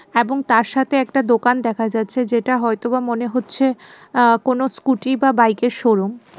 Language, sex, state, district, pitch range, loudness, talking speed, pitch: Bengali, female, Tripura, West Tripura, 230-265 Hz, -18 LUFS, 170 wpm, 245 Hz